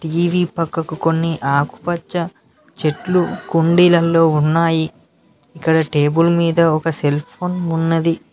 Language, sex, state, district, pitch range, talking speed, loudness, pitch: Telugu, male, Telangana, Mahabubabad, 160-170 Hz, 100 wpm, -17 LUFS, 165 Hz